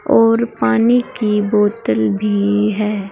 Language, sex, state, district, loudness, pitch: Hindi, female, Uttar Pradesh, Saharanpur, -15 LUFS, 210 Hz